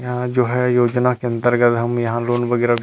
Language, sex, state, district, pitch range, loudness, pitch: Chhattisgarhi, male, Chhattisgarh, Rajnandgaon, 120-125 Hz, -18 LUFS, 120 Hz